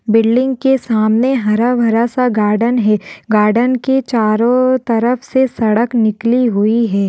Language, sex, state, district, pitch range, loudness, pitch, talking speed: Hindi, female, Uttar Pradesh, Deoria, 215-250 Hz, -14 LUFS, 230 Hz, 145 wpm